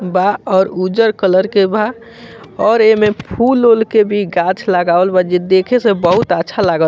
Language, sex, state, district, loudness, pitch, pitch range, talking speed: Bhojpuri, male, Bihar, Muzaffarpur, -13 LUFS, 200 Hz, 185-220 Hz, 185 wpm